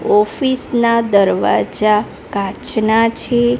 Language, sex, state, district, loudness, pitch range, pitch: Gujarati, female, Gujarat, Gandhinagar, -15 LUFS, 215-245 Hz, 230 Hz